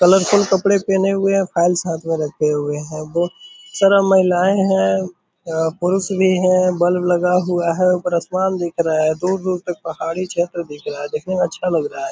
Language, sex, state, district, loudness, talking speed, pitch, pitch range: Hindi, male, Bihar, Purnia, -18 LUFS, 205 wpm, 180 Hz, 165-185 Hz